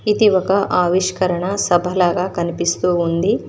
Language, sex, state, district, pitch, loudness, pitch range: Telugu, female, Telangana, Mahabubabad, 180 Hz, -17 LUFS, 175-190 Hz